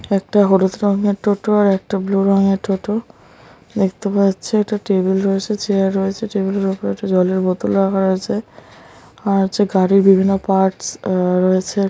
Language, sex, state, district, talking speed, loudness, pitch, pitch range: Bengali, male, West Bengal, Jhargram, 175 wpm, -17 LUFS, 195 Hz, 190-205 Hz